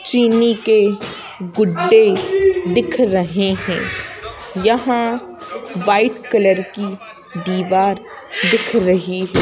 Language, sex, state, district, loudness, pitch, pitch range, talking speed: Hindi, female, Madhya Pradesh, Bhopal, -16 LUFS, 210 Hz, 190-235 Hz, 90 wpm